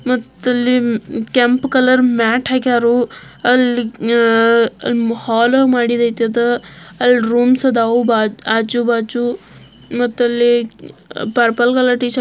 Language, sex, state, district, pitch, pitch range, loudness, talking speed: Kannada, female, Karnataka, Belgaum, 240 Hz, 230-245 Hz, -15 LUFS, 100 wpm